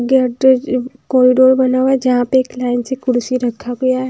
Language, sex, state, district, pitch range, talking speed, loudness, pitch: Hindi, female, Bihar, Patna, 250-260 Hz, 175 wpm, -14 LUFS, 255 Hz